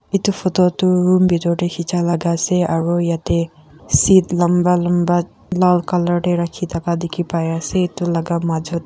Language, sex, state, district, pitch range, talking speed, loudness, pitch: Nagamese, female, Nagaland, Kohima, 170-180 Hz, 175 wpm, -17 LUFS, 175 Hz